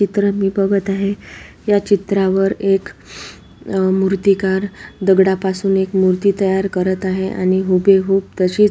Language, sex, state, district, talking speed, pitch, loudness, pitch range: Marathi, female, Maharashtra, Solapur, 130 wpm, 195 Hz, -16 LUFS, 190-200 Hz